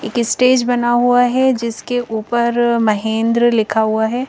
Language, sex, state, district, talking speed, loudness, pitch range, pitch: Hindi, female, Madhya Pradesh, Bhopal, 155 wpm, -15 LUFS, 220-245 Hz, 235 Hz